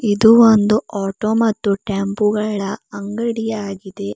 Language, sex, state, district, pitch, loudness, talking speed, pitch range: Kannada, female, Karnataka, Bidar, 210 Hz, -17 LUFS, 100 wpm, 200-225 Hz